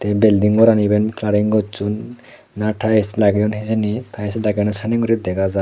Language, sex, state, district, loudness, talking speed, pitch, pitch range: Chakma, male, Tripura, Dhalai, -17 LUFS, 170 wpm, 105 Hz, 105-110 Hz